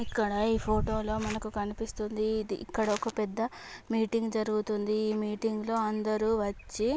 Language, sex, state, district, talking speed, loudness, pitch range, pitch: Telugu, male, Andhra Pradesh, Chittoor, 145 wpm, -31 LUFS, 215-225 Hz, 215 Hz